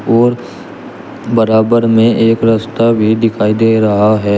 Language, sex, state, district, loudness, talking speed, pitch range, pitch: Hindi, male, Uttar Pradesh, Shamli, -11 LUFS, 135 wpm, 110-115 Hz, 115 Hz